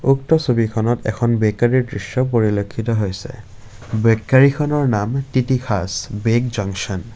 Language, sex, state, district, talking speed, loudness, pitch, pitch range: Assamese, male, Assam, Kamrup Metropolitan, 110 wpm, -18 LUFS, 115 Hz, 105-130 Hz